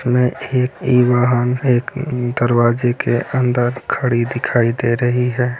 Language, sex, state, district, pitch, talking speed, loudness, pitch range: Hindi, male, Bihar, Lakhisarai, 125 Hz, 150 wpm, -17 LUFS, 120-125 Hz